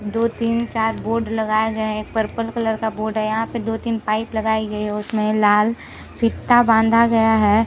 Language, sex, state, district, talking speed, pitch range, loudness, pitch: Hindi, female, Chhattisgarh, Rajnandgaon, 205 wpm, 215-230 Hz, -19 LUFS, 220 Hz